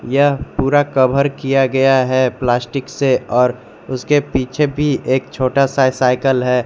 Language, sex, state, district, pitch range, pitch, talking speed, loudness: Hindi, male, Jharkhand, Garhwa, 125-140 Hz, 130 Hz, 155 wpm, -16 LUFS